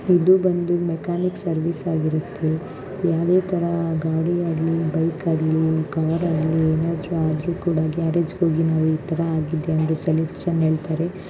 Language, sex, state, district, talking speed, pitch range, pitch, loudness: Kannada, female, Karnataka, Shimoga, 140 wpm, 160-175 Hz, 165 Hz, -22 LUFS